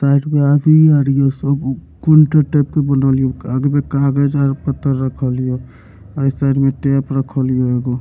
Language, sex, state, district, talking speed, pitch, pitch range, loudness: Maithili, male, Bihar, Supaul, 135 wpm, 140 Hz, 130-140 Hz, -15 LUFS